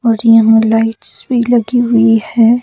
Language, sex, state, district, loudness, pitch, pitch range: Hindi, female, Himachal Pradesh, Shimla, -11 LUFS, 230 Hz, 225-240 Hz